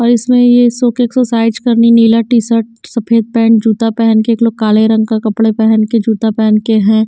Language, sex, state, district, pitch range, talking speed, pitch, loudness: Hindi, female, Haryana, Jhajjar, 220-235 Hz, 230 wpm, 225 Hz, -10 LUFS